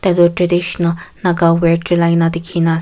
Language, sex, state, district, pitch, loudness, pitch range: Nagamese, female, Nagaland, Kohima, 170 Hz, -14 LUFS, 170-175 Hz